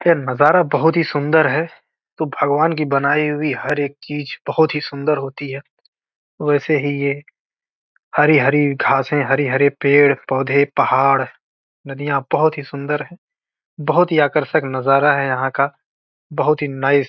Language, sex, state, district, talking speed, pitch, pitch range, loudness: Hindi, male, Bihar, Gopalganj, 145 wpm, 145 Hz, 140-150 Hz, -17 LUFS